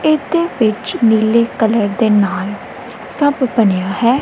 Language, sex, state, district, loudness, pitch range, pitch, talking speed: Punjabi, female, Punjab, Kapurthala, -14 LUFS, 210-255 Hz, 225 Hz, 130 wpm